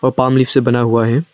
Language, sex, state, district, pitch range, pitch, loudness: Hindi, male, Arunachal Pradesh, Lower Dibang Valley, 120-130 Hz, 130 Hz, -14 LUFS